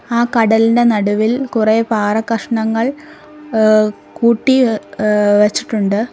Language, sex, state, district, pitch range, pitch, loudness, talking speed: Malayalam, female, Kerala, Kollam, 215-235 Hz, 225 Hz, -14 LUFS, 90 wpm